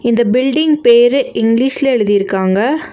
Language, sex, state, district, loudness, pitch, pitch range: Tamil, female, Tamil Nadu, Nilgiris, -12 LUFS, 240 Hz, 225-270 Hz